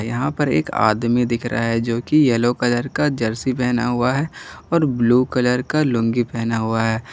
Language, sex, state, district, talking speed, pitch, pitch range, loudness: Hindi, male, Jharkhand, Garhwa, 195 wpm, 120 Hz, 115-130 Hz, -19 LUFS